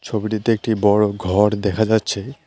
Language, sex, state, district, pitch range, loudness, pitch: Bengali, male, West Bengal, Alipurduar, 105-110 Hz, -18 LUFS, 105 Hz